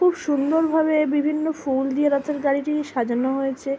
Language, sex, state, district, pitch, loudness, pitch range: Bengali, female, West Bengal, Purulia, 290 Hz, -22 LUFS, 270-305 Hz